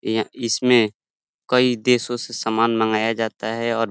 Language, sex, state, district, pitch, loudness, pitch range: Hindi, male, Uttar Pradesh, Deoria, 115 Hz, -20 LUFS, 110-120 Hz